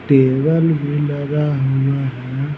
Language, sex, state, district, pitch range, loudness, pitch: Hindi, male, Bihar, Patna, 135-145 Hz, -17 LUFS, 140 Hz